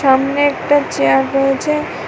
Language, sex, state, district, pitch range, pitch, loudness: Bengali, female, Tripura, West Tripura, 265-290 Hz, 275 Hz, -15 LUFS